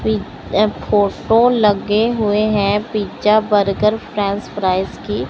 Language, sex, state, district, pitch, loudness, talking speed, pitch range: Hindi, male, Chandigarh, Chandigarh, 210 Hz, -16 LUFS, 115 wpm, 200-215 Hz